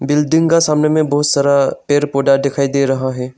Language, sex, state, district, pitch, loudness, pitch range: Hindi, male, Arunachal Pradesh, Longding, 140 Hz, -14 LUFS, 135-150 Hz